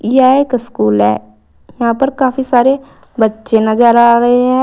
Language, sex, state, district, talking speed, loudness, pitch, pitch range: Hindi, female, Uttar Pradesh, Saharanpur, 170 wpm, -12 LUFS, 240 Hz, 220-260 Hz